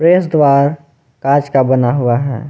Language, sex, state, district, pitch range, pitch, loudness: Hindi, male, Jharkhand, Garhwa, 130-145 Hz, 140 Hz, -13 LUFS